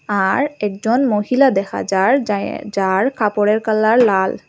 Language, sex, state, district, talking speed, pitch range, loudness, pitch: Bengali, female, Assam, Hailakandi, 135 wpm, 200-245 Hz, -16 LUFS, 210 Hz